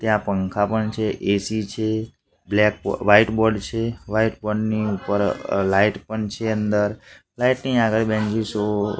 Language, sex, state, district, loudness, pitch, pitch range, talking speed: Gujarati, male, Gujarat, Gandhinagar, -21 LUFS, 110 Hz, 105-110 Hz, 160 wpm